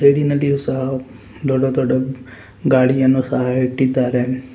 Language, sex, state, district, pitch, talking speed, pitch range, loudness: Kannada, male, Karnataka, Gulbarga, 130 Hz, 105 wpm, 125-135 Hz, -18 LUFS